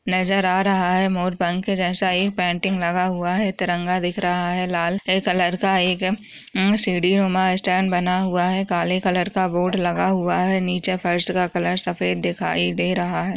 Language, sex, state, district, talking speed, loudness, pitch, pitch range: Hindi, female, Maharashtra, Chandrapur, 190 wpm, -21 LUFS, 185 Hz, 180-190 Hz